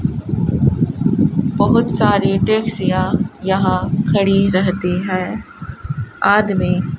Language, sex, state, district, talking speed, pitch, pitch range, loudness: Hindi, female, Rajasthan, Bikaner, 75 wpm, 190 Hz, 180-195 Hz, -17 LUFS